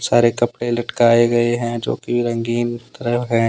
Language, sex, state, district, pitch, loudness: Hindi, male, Jharkhand, Deoghar, 120 Hz, -18 LUFS